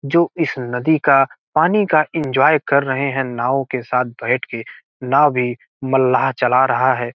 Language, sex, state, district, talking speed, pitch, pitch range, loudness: Hindi, male, Bihar, Gopalganj, 175 wpm, 135 Hz, 125-150 Hz, -17 LUFS